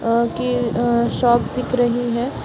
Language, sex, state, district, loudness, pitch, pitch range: Hindi, female, Bihar, Darbhanga, -19 LUFS, 240 Hz, 235-245 Hz